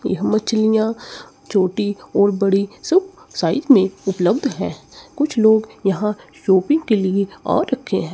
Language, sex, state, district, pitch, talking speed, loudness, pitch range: Hindi, male, Chandigarh, Chandigarh, 210 Hz, 140 wpm, -18 LUFS, 195-220 Hz